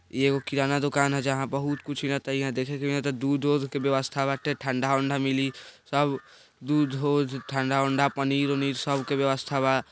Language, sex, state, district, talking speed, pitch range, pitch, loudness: Bhojpuri, male, Bihar, East Champaran, 165 wpm, 135-140 Hz, 140 Hz, -26 LUFS